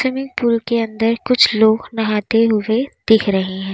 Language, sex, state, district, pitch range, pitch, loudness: Hindi, female, Uttar Pradesh, Lalitpur, 215-235 Hz, 225 Hz, -16 LUFS